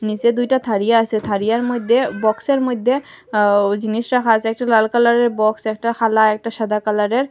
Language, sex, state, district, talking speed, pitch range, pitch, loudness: Bengali, female, Assam, Hailakandi, 205 wpm, 215-240 Hz, 225 Hz, -17 LUFS